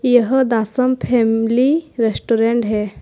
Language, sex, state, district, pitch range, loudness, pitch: Hindi, female, Jharkhand, Ranchi, 225-255 Hz, -16 LUFS, 235 Hz